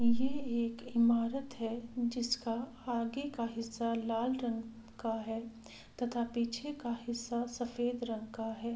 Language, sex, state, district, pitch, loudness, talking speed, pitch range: Hindi, female, Bihar, Saran, 235 Hz, -36 LUFS, 135 wpm, 230-245 Hz